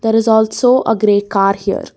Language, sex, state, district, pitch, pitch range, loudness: English, female, Karnataka, Bangalore, 220 Hz, 200-225 Hz, -13 LUFS